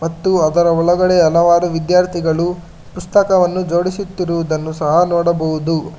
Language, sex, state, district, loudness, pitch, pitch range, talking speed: Kannada, male, Karnataka, Bangalore, -15 LUFS, 170 Hz, 165-180 Hz, 90 wpm